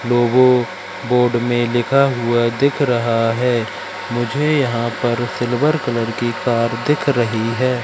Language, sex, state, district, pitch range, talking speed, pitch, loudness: Hindi, male, Madhya Pradesh, Katni, 120-135 Hz, 140 wpm, 120 Hz, -17 LUFS